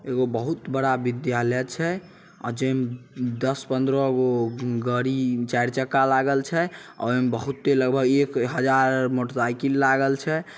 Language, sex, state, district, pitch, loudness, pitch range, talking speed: Maithili, male, Bihar, Samastipur, 130 Hz, -24 LUFS, 125-135 Hz, 155 wpm